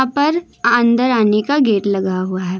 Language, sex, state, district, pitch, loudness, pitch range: Hindi, female, Uttar Pradesh, Lucknow, 230 Hz, -16 LUFS, 195-265 Hz